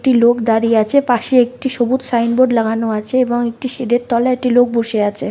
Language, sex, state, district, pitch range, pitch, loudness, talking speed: Bengali, female, West Bengal, North 24 Parganas, 230-255 Hz, 240 Hz, -15 LUFS, 215 wpm